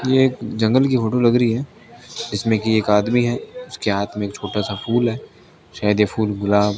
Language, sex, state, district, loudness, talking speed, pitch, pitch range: Hindi, male, Rajasthan, Bikaner, -19 LUFS, 230 wpm, 110 Hz, 105-120 Hz